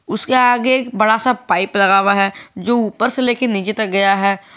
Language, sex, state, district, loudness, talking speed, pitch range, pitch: Hindi, male, Jharkhand, Garhwa, -15 LUFS, 225 wpm, 195-245 Hz, 215 Hz